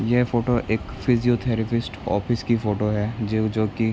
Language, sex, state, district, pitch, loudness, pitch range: Hindi, male, Bihar, Begusarai, 115 Hz, -23 LUFS, 110-120 Hz